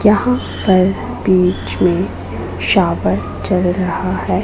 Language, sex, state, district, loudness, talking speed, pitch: Hindi, female, Punjab, Pathankot, -16 LUFS, 110 wpm, 180 Hz